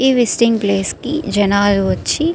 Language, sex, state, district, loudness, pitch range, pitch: Telugu, female, Andhra Pradesh, Srikakulam, -15 LUFS, 200-265 Hz, 225 Hz